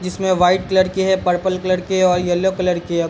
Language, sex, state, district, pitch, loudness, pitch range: Hindi, male, Bihar, Darbhanga, 185 Hz, -17 LUFS, 180-190 Hz